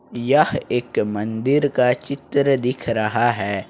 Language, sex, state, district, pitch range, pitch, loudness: Hindi, male, Jharkhand, Ranchi, 110-140 Hz, 120 Hz, -20 LUFS